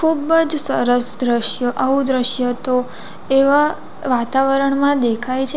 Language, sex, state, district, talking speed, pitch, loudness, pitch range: Gujarati, female, Gujarat, Valsad, 120 wpm, 265 Hz, -16 LUFS, 245-280 Hz